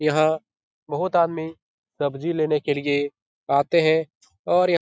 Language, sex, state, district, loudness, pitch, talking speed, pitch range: Hindi, male, Bihar, Jahanabad, -23 LUFS, 155 Hz, 150 wpm, 145-170 Hz